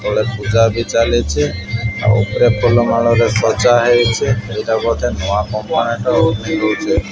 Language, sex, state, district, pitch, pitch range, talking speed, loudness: Odia, male, Odisha, Malkangiri, 115 Hz, 105-115 Hz, 125 wpm, -15 LUFS